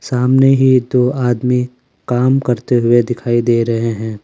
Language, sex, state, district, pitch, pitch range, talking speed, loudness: Hindi, male, Jharkhand, Ranchi, 125 Hz, 120-125 Hz, 155 wpm, -14 LUFS